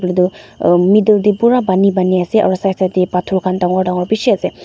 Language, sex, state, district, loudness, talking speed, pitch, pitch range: Nagamese, female, Nagaland, Dimapur, -14 LUFS, 220 wpm, 185 Hz, 180-210 Hz